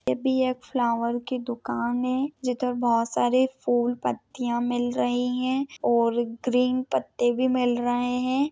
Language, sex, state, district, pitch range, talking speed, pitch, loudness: Hindi, female, Maharashtra, Pune, 240-255 Hz, 155 wpm, 245 Hz, -25 LUFS